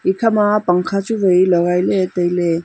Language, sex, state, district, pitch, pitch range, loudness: Wancho, female, Arunachal Pradesh, Longding, 185 Hz, 180-195 Hz, -16 LUFS